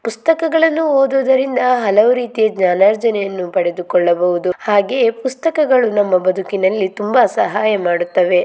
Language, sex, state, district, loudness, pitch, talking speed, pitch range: Kannada, female, Karnataka, Mysore, -15 LUFS, 210 Hz, 100 wpm, 185-255 Hz